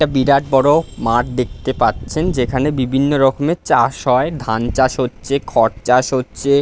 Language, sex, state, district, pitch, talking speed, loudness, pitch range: Bengali, male, West Bengal, Dakshin Dinajpur, 130 Hz, 155 wpm, -16 LUFS, 125-140 Hz